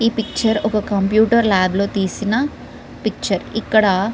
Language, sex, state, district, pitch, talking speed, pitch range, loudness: Telugu, female, Telangana, Karimnagar, 215 Hz, 145 wpm, 200-225 Hz, -18 LUFS